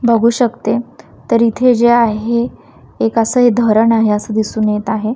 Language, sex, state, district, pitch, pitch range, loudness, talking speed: Marathi, female, Maharashtra, Washim, 230 Hz, 220-235 Hz, -14 LUFS, 175 wpm